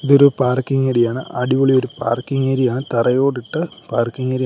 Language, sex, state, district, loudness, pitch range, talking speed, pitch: Malayalam, male, Kerala, Kollam, -18 LUFS, 125-135 Hz, 160 wpm, 130 Hz